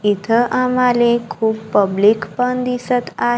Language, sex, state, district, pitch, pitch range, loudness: Marathi, female, Maharashtra, Gondia, 235 Hz, 210-250 Hz, -16 LUFS